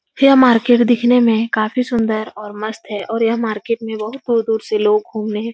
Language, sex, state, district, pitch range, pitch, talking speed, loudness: Hindi, female, Uttar Pradesh, Etah, 215-235 Hz, 225 Hz, 205 wpm, -16 LUFS